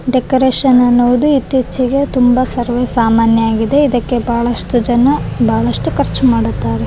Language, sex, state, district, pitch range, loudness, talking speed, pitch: Kannada, female, Karnataka, Raichur, 160-255 Hz, -13 LUFS, 115 wpm, 245 Hz